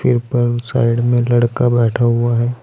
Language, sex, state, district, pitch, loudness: Hindi, male, Uttar Pradesh, Saharanpur, 120 Hz, -15 LUFS